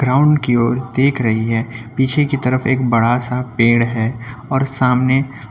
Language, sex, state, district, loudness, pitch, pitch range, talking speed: Hindi, male, Uttar Pradesh, Lucknow, -16 LUFS, 125 Hz, 120-130 Hz, 175 wpm